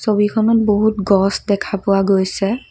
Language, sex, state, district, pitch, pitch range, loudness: Assamese, female, Assam, Kamrup Metropolitan, 205 Hz, 195-220 Hz, -16 LUFS